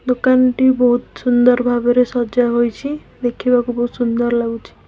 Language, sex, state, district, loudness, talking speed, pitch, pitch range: Odia, female, Odisha, Khordha, -16 LUFS, 150 wpm, 245 Hz, 240-250 Hz